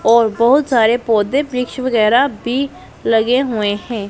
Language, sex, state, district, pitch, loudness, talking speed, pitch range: Hindi, female, Punjab, Pathankot, 235 Hz, -15 LUFS, 160 wpm, 220-255 Hz